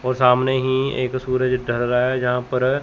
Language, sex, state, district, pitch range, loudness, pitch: Hindi, male, Chandigarh, Chandigarh, 125-130 Hz, -20 LUFS, 130 Hz